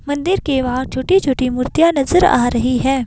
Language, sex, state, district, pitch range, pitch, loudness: Hindi, female, Himachal Pradesh, Shimla, 255-330 Hz, 270 Hz, -16 LUFS